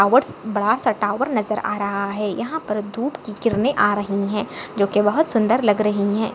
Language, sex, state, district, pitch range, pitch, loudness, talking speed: Hindi, female, Maharashtra, Chandrapur, 205-230 Hz, 210 Hz, -21 LUFS, 200 wpm